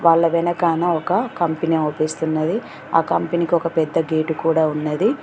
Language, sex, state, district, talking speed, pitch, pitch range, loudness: Telugu, female, Telangana, Mahabubabad, 150 wpm, 165 Hz, 160-170 Hz, -20 LUFS